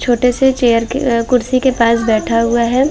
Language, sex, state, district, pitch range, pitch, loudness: Hindi, female, Chhattisgarh, Bilaspur, 230-255 Hz, 240 Hz, -13 LUFS